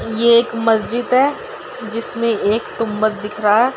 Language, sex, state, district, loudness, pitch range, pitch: Hindi, male, Bihar, Sitamarhi, -17 LUFS, 215-240 Hz, 230 Hz